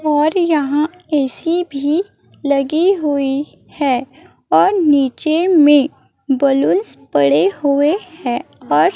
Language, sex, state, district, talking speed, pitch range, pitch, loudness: Hindi, female, Chhattisgarh, Raipur, 100 wpm, 280-345 Hz, 300 Hz, -16 LUFS